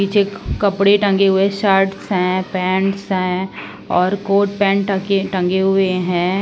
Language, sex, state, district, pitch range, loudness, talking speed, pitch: Hindi, female, Uttar Pradesh, Ghazipur, 185-200 Hz, -17 LUFS, 140 wpm, 195 Hz